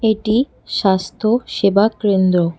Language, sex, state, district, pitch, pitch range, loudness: Bengali, female, West Bengal, Cooch Behar, 205 Hz, 190-220 Hz, -17 LUFS